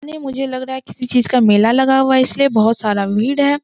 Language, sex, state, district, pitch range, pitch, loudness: Hindi, female, Jharkhand, Sahebganj, 225-270 Hz, 260 Hz, -13 LUFS